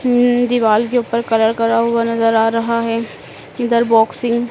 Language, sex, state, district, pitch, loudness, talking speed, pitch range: Hindi, female, Madhya Pradesh, Dhar, 230 Hz, -15 LUFS, 185 wpm, 230-240 Hz